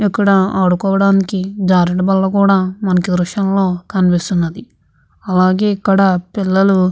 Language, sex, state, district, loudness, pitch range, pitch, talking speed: Telugu, female, Andhra Pradesh, Visakhapatnam, -14 LUFS, 185-195 Hz, 190 Hz, 115 wpm